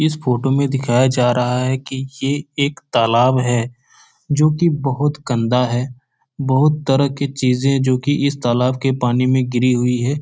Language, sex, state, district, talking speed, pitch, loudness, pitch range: Hindi, male, Bihar, Jahanabad, 180 wpm, 130 Hz, -17 LUFS, 125-140 Hz